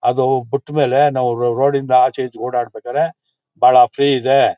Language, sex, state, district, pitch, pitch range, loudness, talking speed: Kannada, male, Karnataka, Mysore, 130 Hz, 125-140 Hz, -16 LUFS, 145 wpm